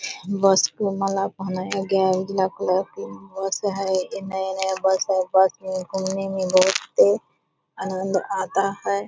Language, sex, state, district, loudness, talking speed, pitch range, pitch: Hindi, female, Bihar, Purnia, -22 LUFS, 150 wpm, 190-195 Hz, 190 Hz